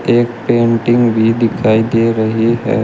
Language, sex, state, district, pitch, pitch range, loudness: Hindi, male, Uttar Pradesh, Shamli, 115 Hz, 115-120 Hz, -13 LUFS